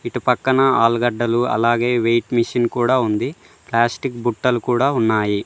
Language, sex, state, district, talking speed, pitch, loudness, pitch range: Telugu, male, Telangana, Mahabubabad, 130 wpm, 120 Hz, -18 LUFS, 115-125 Hz